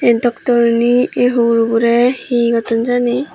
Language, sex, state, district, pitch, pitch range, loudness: Chakma, female, Tripura, Dhalai, 240 Hz, 235-245 Hz, -14 LUFS